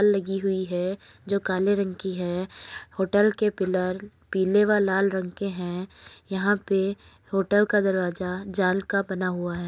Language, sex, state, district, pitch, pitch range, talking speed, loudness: Hindi, female, Uttar Pradesh, Jalaun, 195 Hz, 185-200 Hz, 165 wpm, -25 LUFS